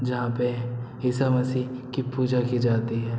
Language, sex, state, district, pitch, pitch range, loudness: Hindi, male, Bihar, Araria, 125 Hz, 120-130 Hz, -26 LUFS